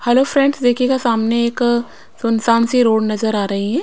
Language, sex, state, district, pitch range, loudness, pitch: Hindi, female, Bihar, Patna, 225-250 Hz, -16 LUFS, 235 Hz